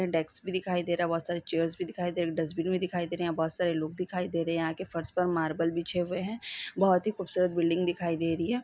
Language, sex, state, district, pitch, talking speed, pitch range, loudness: Hindi, female, Chhattisgarh, Sukma, 175 Hz, 310 wpm, 165-180 Hz, -30 LUFS